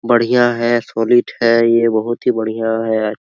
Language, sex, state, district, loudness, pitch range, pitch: Hindi, male, Bihar, Araria, -15 LUFS, 115-120 Hz, 115 Hz